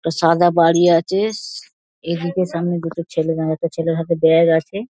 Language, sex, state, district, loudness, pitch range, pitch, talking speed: Bengali, female, West Bengal, Dakshin Dinajpur, -17 LUFS, 165-175 Hz, 170 Hz, 185 wpm